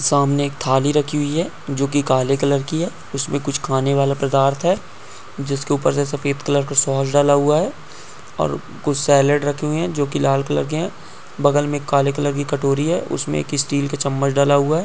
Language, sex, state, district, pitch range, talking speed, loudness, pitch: Hindi, female, Uttar Pradesh, Jyotiba Phule Nagar, 140-145 Hz, 220 wpm, -19 LUFS, 140 Hz